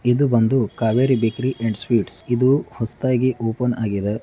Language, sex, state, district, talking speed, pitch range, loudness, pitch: Kannada, male, Karnataka, Chamarajanagar, 155 wpm, 110-130 Hz, -20 LUFS, 120 Hz